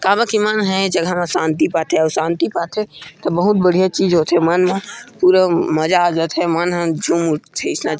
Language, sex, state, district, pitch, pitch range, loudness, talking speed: Chhattisgarhi, male, Chhattisgarh, Kabirdham, 175 Hz, 165-190 Hz, -16 LUFS, 225 wpm